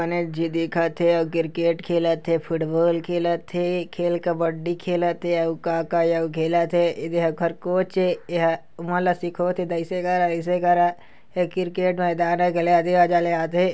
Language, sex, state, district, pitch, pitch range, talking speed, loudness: Chhattisgarhi, female, Chhattisgarh, Kabirdham, 170 Hz, 165-175 Hz, 165 wpm, -22 LUFS